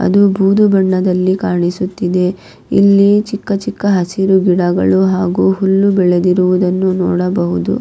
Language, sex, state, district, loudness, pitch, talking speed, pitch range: Kannada, female, Karnataka, Raichur, -13 LUFS, 185 Hz, 100 wpm, 180-195 Hz